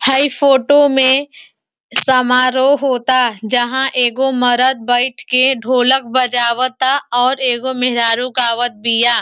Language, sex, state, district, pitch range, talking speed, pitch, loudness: Bhojpuri, female, Uttar Pradesh, Ghazipur, 245-265 Hz, 105 wpm, 255 Hz, -13 LUFS